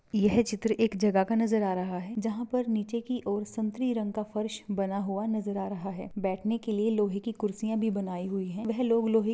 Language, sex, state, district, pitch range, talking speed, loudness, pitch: Hindi, female, Chhattisgarh, Raigarh, 200-225 Hz, 245 wpm, -30 LUFS, 215 Hz